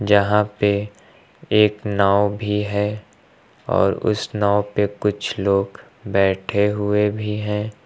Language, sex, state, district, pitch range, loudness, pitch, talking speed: Hindi, male, Uttar Pradesh, Lucknow, 100-105 Hz, -20 LUFS, 105 Hz, 120 wpm